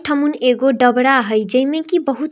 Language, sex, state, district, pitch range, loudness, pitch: Hindi, female, Bihar, Darbhanga, 250-295 Hz, -15 LUFS, 270 Hz